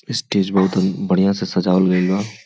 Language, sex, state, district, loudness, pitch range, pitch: Bhojpuri, male, Uttar Pradesh, Gorakhpur, -18 LUFS, 95-100 Hz, 95 Hz